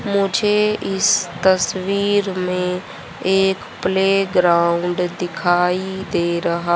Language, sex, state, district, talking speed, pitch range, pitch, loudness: Hindi, male, Haryana, Rohtak, 90 wpm, 175-195 Hz, 185 Hz, -18 LUFS